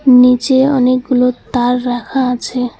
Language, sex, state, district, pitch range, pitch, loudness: Bengali, female, West Bengal, Alipurduar, 250-260 Hz, 250 Hz, -13 LUFS